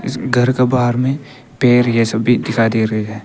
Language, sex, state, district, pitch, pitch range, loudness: Hindi, male, Arunachal Pradesh, Papum Pare, 120 Hz, 115-125 Hz, -15 LUFS